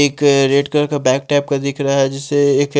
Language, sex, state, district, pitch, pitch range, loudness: Hindi, male, Haryana, Charkhi Dadri, 140 Hz, 140-145 Hz, -15 LUFS